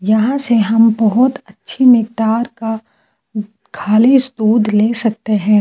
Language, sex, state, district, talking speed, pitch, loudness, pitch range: Hindi, female, Delhi, New Delhi, 115 wpm, 225 Hz, -13 LUFS, 215-235 Hz